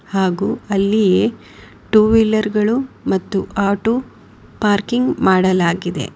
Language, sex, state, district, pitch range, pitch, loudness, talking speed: Kannada, female, Karnataka, Bangalore, 190-220 Hz, 205 Hz, -17 LUFS, 90 wpm